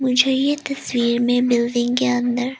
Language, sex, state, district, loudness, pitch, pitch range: Hindi, female, Arunachal Pradesh, Lower Dibang Valley, -19 LUFS, 250 Hz, 240-265 Hz